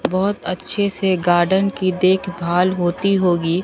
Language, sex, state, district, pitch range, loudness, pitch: Hindi, female, Bihar, Katihar, 175-195 Hz, -18 LUFS, 185 Hz